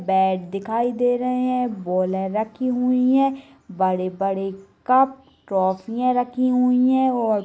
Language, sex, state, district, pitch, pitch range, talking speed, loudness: Hindi, female, Bihar, Darbhanga, 240 Hz, 195-255 Hz, 135 wpm, -21 LUFS